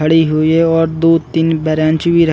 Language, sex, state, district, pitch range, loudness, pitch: Hindi, male, Uttar Pradesh, Varanasi, 155-165 Hz, -13 LUFS, 160 Hz